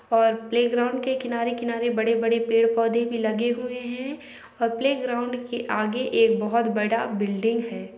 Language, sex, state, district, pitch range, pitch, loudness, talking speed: Bhojpuri, female, Uttar Pradesh, Gorakhpur, 225-245 Hz, 235 Hz, -24 LUFS, 165 wpm